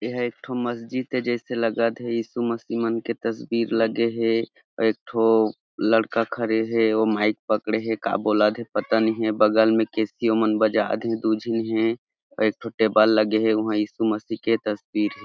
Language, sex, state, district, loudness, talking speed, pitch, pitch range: Chhattisgarhi, male, Chhattisgarh, Jashpur, -23 LUFS, 200 wpm, 110 Hz, 110-115 Hz